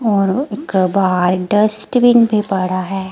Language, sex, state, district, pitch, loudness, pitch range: Hindi, female, Himachal Pradesh, Shimla, 195 Hz, -15 LUFS, 185-215 Hz